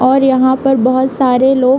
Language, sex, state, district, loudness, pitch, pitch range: Hindi, female, Uttar Pradesh, Hamirpur, -11 LUFS, 260 Hz, 255-265 Hz